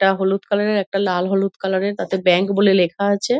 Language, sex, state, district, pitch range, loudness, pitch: Bengali, female, West Bengal, Dakshin Dinajpur, 190-200 Hz, -18 LUFS, 195 Hz